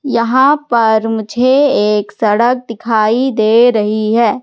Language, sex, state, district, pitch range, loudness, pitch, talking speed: Hindi, female, Madhya Pradesh, Katni, 220-250 Hz, -12 LUFS, 230 Hz, 120 wpm